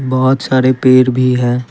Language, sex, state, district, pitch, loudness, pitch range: Hindi, male, Assam, Kamrup Metropolitan, 130 Hz, -12 LUFS, 125-130 Hz